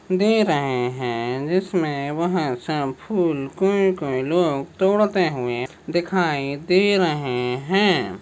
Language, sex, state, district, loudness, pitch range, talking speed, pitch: Hindi, male, Maharashtra, Sindhudurg, -21 LUFS, 135-185 Hz, 115 wpm, 165 Hz